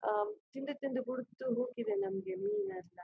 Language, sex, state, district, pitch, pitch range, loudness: Kannada, female, Karnataka, Dakshina Kannada, 230 Hz, 195-255 Hz, -38 LUFS